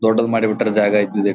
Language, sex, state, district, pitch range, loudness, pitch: Kannada, male, Karnataka, Gulbarga, 105-110 Hz, -17 LUFS, 110 Hz